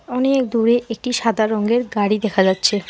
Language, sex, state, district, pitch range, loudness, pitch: Bengali, female, West Bengal, Alipurduar, 210-245 Hz, -18 LUFS, 225 Hz